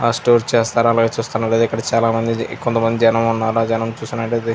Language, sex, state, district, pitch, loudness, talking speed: Telugu, male, Andhra Pradesh, Anantapur, 115 Hz, -17 LUFS, 210 wpm